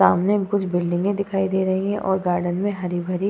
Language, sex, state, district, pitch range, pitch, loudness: Hindi, female, Uttar Pradesh, Budaun, 180-200 Hz, 190 Hz, -22 LUFS